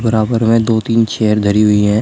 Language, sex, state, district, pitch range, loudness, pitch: Hindi, male, Uttar Pradesh, Shamli, 105-115 Hz, -13 LUFS, 110 Hz